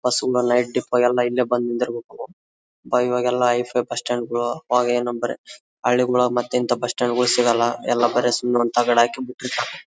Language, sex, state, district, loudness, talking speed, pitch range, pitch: Kannada, male, Karnataka, Bellary, -20 LUFS, 110 wpm, 120-125 Hz, 120 Hz